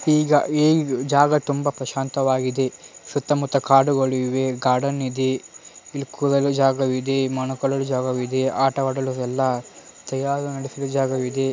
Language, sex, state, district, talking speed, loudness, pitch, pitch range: Kannada, male, Karnataka, Dharwad, 120 wpm, -21 LUFS, 135 Hz, 130-140 Hz